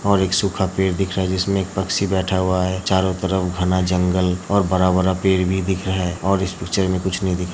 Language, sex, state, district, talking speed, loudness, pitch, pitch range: Hindi, male, Uttar Pradesh, Hamirpur, 255 wpm, -20 LUFS, 95 Hz, 90-95 Hz